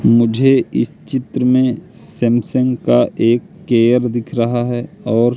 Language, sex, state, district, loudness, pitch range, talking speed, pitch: Hindi, male, Madhya Pradesh, Katni, -16 LUFS, 115-130 Hz, 135 wpm, 120 Hz